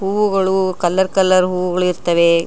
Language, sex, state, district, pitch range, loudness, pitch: Kannada, female, Karnataka, Shimoga, 180-190 Hz, -16 LUFS, 185 Hz